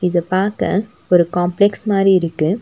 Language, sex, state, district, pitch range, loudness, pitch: Tamil, female, Tamil Nadu, Nilgiris, 175-200 Hz, -16 LUFS, 185 Hz